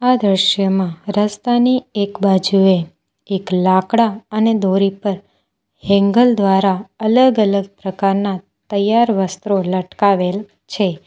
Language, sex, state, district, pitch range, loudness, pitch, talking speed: Gujarati, female, Gujarat, Valsad, 190-215 Hz, -16 LUFS, 200 Hz, 105 wpm